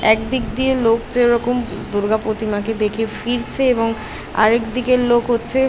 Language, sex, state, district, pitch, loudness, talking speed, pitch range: Bengali, female, West Bengal, Jhargram, 230 Hz, -18 LUFS, 160 wpm, 220-245 Hz